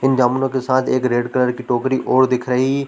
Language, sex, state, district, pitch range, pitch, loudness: Hindi, male, Chhattisgarh, Korba, 125-130 Hz, 130 Hz, -18 LUFS